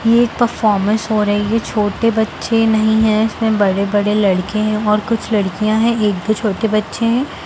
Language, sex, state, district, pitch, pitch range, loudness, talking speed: Hindi, female, Bihar, Samastipur, 215 Hz, 210-225 Hz, -16 LUFS, 175 wpm